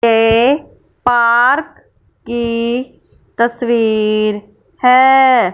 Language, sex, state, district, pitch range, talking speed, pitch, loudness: Hindi, female, Punjab, Fazilka, 225-250 Hz, 55 wpm, 235 Hz, -13 LUFS